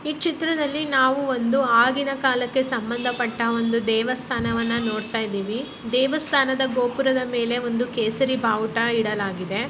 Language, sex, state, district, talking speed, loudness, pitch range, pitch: Kannada, female, Karnataka, Bellary, 120 wpm, -22 LUFS, 230-265 Hz, 245 Hz